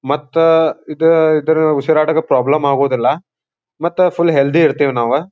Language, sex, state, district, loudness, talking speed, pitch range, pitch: Kannada, male, Karnataka, Dharwad, -14 LUFS, 125 wpm, 140-165 Hz, 155 Hz